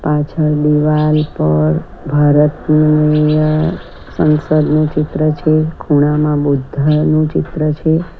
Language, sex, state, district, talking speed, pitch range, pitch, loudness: Gujarati, female, Gujarat, Valsad, 80 wpm, 150-155 Hz, 150 Hz, -13 LUFS